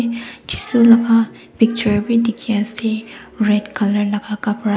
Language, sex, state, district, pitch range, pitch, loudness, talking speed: Nagamese, female, Nagaland, Dimapur, 210-230 Hz, 220 Hz, -17 LUFS, 125 wpm